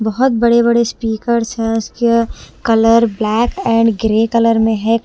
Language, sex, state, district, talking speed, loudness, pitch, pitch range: Hindi, female, Bihar, West Champaran, 155 wpm, -14 LUFS, 230 Hz, 225-235 Hz